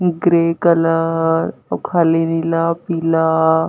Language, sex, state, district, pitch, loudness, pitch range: Chhattisgarhi, female, Chhattisgarh, Jashpur, 165 Hz, -16 LUFS, 165-170 Hz